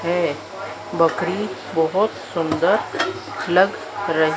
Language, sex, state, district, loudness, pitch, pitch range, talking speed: Hindi, female, Madhya Pradesh, Dhar, -21 LUFS, 175 Hz, 165-200 Hz, 80 wpm